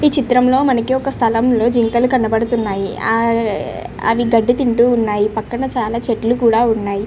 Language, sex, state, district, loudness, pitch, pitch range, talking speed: Telugu, female, Andhra Pradesh, Srikakulam, -16 LUFS, 235 Hz, 225-245 Hz, 160 wpm